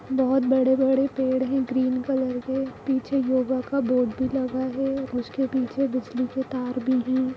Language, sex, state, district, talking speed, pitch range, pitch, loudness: Hindi, female, Bihar, Gopalganj, 170 wpm, 255-265 Hz, 260 Hz, -24 LUFS